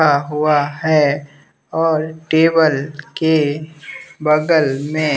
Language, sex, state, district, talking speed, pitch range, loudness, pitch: Hindi, male, Bihar, West Champaran, 95 wpm, 145-160 Hz, -16 LUFS, 155 Hz